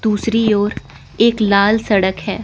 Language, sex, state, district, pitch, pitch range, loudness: Hindi, female, Chandigarh, Chandigarh, 205 Hz, 195-220 Hz, -15 LUFS